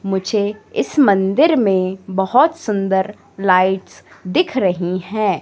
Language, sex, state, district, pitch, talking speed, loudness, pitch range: Hindi, female, Madhya Pradesh, Katni, 195 Hz, 110 wpm, -17 LUFS, 190-215 Hz